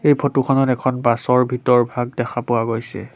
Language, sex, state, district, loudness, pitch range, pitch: Assamese, male, Assam, Sonitpur, -18 LUFS, 120-130 Hz, 125 Hz